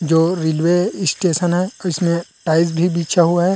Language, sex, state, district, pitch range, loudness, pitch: Chhattisgarhi, male, Chhattisgarh, Rajnandgaon, 165-180 Hz, -17 LUFS, 175 Hz